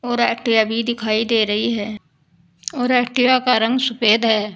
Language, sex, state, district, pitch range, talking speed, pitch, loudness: Hindi, female, Uttar Pradesh, Saharanpur, 215-245 Hz, 155 wpm, 230 Hz, -17 LUFS